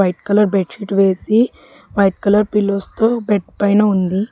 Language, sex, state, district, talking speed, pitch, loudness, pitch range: Telugu, female, Telangana, Hyderabad, 155 wpm, 205 Hz, -16 LUFS, 195-210 Hz